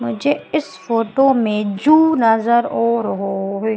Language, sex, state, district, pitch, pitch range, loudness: Hindi, female, Madhya Pradesh, Umaria, 230 Hz, 205-270 Hz, -17 LUFS